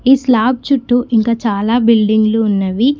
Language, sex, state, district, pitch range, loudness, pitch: Telugu, female, Telangana, Mahabubabad, 220-250 Hz, -13 LUFS, 230 Hz